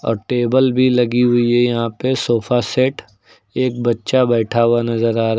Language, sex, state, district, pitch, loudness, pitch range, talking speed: Hindi, male, Uttar Pradesh, Lucknow, 120 Hz, -16 LUFS, 115-130 Hz, 190 wpm